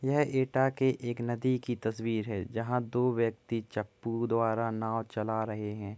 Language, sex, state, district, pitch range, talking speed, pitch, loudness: Hindi, male, Uttar Pradesh, Etah, 110-125 Hz, 180 wpm, 115 Hz, -32 LUFS